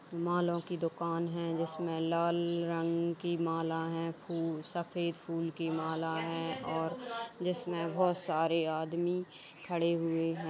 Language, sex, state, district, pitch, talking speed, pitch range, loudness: Hindi, female, Uttar Pradesh, Jalaun, 165 Hz, 135 wpm, 165-170 Hz, -35 LUFS